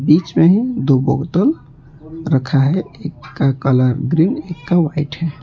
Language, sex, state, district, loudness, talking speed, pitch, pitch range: Hindi, male, West Bengal, Alipurduar, -16 LUFS, 155 wpm, 150 Hz, 135-165 Hz